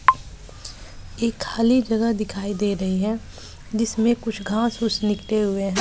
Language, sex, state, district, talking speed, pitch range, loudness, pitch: Hindi, female, Bihar, West Champaran, 145 wpm, 205-230 Hz, -23 LUFS, 220 Hz